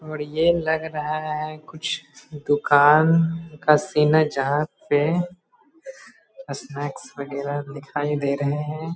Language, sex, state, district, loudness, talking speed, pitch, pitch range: Hindi, male, Bihar, Muzaffarpur, -22 LUFS, 125 wpm, 150 Hz, 145-160 Hz